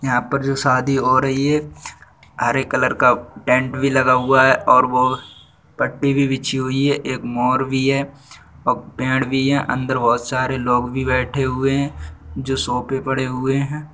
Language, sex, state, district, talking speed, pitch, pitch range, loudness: Bundeli, male, Uttar Pradesh, Budaun, 185 wpm, 130 Hz, 125-135 Hz, -18 LUFS